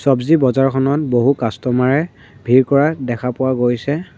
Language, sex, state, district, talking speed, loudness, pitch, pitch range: Assamese, male, Assam, Sonitpur, 145 wpm, -16 LUFS, 130 Hz, 125-140 Hz